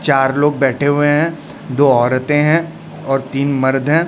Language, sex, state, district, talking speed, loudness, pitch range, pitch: Hindi, male, Odisha, Khordha, 175 wpm, -15 LUFS, 135-150 Hz, 145 Hz